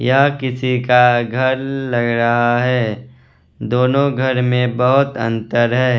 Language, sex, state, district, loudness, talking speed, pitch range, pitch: Hindi, male, Bihar, West Champaran, -16 LUFS, 130 wpm, 120-130 Hz, 125 Hz